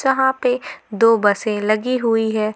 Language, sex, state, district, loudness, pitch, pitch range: Hindi, female, Jharkhand, Garhwa, -18 LUFS, 225 Hz, 215-255 Hz